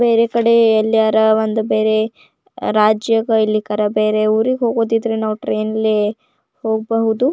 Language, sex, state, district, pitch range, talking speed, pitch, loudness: Kannada, female, Karnataka, Belgaum, 215-230 Hz, 130 wpm, 220 Hz, -16 LUFS